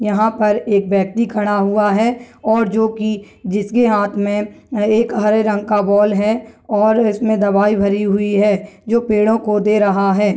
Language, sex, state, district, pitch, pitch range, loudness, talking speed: Hindi, male, Bihar, Kishanganj, 210 Hz, 205-220 Hz, -16 LUFS, 180 wpm